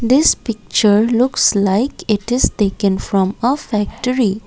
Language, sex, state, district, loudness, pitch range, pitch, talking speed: English, female, Assam, Kamrup Metropolitan, -16 LUFS, 200-245 Hz, 215 Hz, 135 wpm